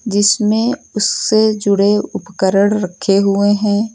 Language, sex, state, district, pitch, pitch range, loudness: Hindi, female, Uttar Pradesh, Lucknow, 205 Hz, 200-215 Hz, -14 LUFS